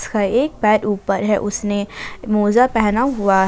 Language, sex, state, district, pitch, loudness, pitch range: Hindi, female, Jharkhand, Ranchi, 210 Hz, -17 LUFS, 205-225 Hz